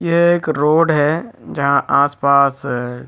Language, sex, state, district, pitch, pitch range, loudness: Hindi, male, Jharkhand, Jamtara, 145 Hz, 140-160 Hz, -15 LUFS